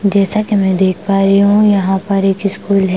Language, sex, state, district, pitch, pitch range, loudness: Hindi, female, Punjab, Pathankot, 195 Hz, 195-200 Hz, -13 LUFS